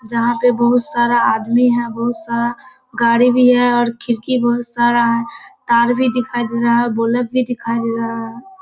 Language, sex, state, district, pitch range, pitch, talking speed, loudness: Hindi, female, Bihar, Kishanganj, 235-245 Hz, 240 Hz, 200 wpm, -16 LUFS